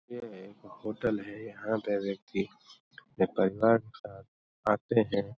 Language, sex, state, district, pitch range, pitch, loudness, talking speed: Hindi, male, Uttar Pradesh, Hamirpur, 100-115 Hz, 110 Hz, -31 LUFS, 145 wpm